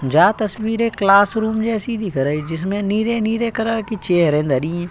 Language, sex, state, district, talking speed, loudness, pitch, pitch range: Hindi, male, Uttar Pradesh, Budaun, 160 wpm, -18 LUFS, 210 Hz, 175-225 Hz